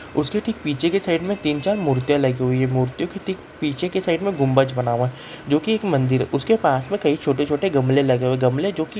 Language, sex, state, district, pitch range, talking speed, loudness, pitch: Hindi, male, Bihar, Darbhanga, 130-190 Hz, 260 wpm, -21 LUFS, 145 Hz